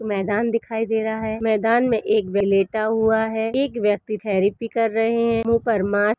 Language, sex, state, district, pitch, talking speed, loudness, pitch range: Hindi, female, Uttarakhand, Uttarkashi, 220 Hz, 205 wpm, -21 LUFS, 210-230 Hz